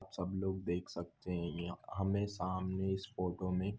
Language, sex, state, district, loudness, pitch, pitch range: Hindi, male, Goa, North and South Goa, -39 LUFS, 95 Hz, 90-95 Hz